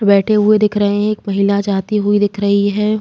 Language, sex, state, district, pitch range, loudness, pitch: Hindi, female, Uttar Pradesh, Jalaun, 200-210 Hz, -14 LUFS, 205 Hz